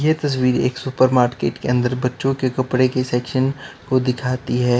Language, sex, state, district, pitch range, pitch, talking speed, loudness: Hindi, male, Uttar Pradesh, Lalitpur, 125-130 Hz, 130 Hz, 190 wpm, -19 LUFS